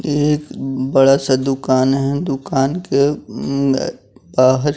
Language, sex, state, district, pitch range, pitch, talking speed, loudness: Hindi, male, Bihar, West Champaran, 135-145 Hz, 135 Hz, 100 wpm, -17 LUFS